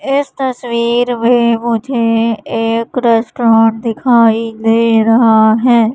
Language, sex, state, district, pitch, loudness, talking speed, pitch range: Hindi, female, Madhya Pradesh, Katni, 230 Hz, -12 LUFS, 100 wpm, 225-240 Hz